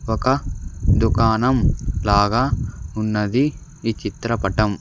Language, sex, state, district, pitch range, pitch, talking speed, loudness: Telugu, male, Andhra Pradesh, Sri Satya Sai, 100-120 Hz, 110 Hz, 75 wpm, -20 LUFS